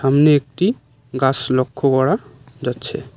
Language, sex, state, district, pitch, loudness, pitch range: Bengali, male, West Bengal, Cooch Behar, 135 Hz, -18 LUFS, 130-145 Hz